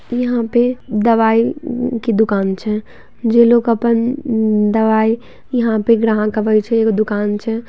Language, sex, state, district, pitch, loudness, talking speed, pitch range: Maithili, female, Bihar, Samastipur, 225 Hz, -15 LUFS, 140 wpm, 215-235 Hz